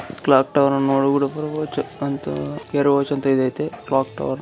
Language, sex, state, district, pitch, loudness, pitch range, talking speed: Kannada, male, Karnataka, Bellary, 140 Hz, -20 LUFS, 135-145 Hz, 80 wpm